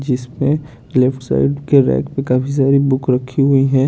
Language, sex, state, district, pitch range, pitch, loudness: Hindi, male, Chandigarh, Chandigarh, 125-135 Hz, 130 Hz, -16 LUFS